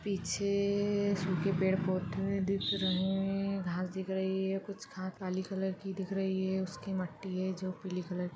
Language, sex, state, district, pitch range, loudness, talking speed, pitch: Hindi, female, Chhattisgarh, Balrampur, 185-195 Hz, -34 LUFS, 185 wpm, 190 Hz